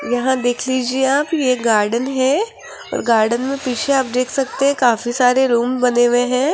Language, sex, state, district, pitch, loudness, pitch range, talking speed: Hindi, female, Rajasthan, Jaipur, 255 Hz, -17 LUFS, 245-265 Hz, 190 wpm